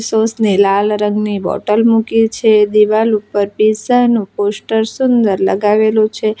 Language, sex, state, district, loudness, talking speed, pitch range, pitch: Gujarati, female, Gujarat, Valsad, -13 LUFS, 130 wpm, 210-225 Hz, 215 Hz